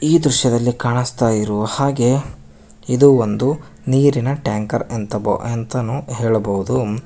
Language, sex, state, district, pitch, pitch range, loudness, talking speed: Kannada, male, Karnataka, Koppal, 120 Hz, 110-135 Hz, -18 LUFS, 100 wpm